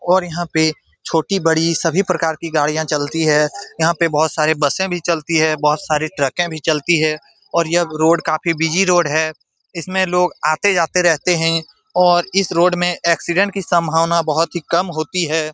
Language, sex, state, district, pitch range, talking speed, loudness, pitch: Hindi, male, Bihar, Saran, 155-175 Hz, 190 wpm, -17 LUFS, 165 Hz